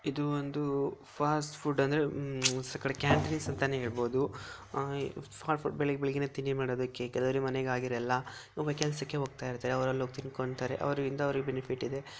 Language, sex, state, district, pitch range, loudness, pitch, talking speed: Kannada, male, Karnataka, Dharwad, 130-145 Hz, -33 LUFS, 135 Hz, 145 wpm